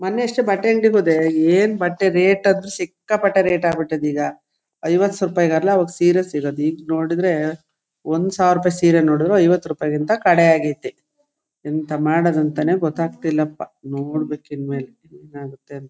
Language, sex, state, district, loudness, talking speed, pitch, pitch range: Kannada, female, Karnataka, Shimoga, -18 LUFS, 135 wpm, 165 Hz, 155-190 Hz